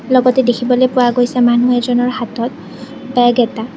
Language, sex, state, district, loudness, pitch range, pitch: Assamese, female, Assam, Kamrup Metropolitan, -14 LUFS, 240-255 Hz, 245 Hz